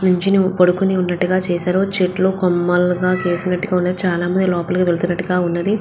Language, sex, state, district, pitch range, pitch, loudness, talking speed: Telugu, female, Andhra Pradesh, Visakhapatnam, 180-185 Hz, 180 Hz, -17 LUFS, 135 wpm